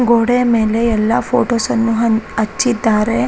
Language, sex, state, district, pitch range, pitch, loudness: Kannada, female, Karnataka, Raichur, 220-235 Hz, 225 Hz, -15 LUFS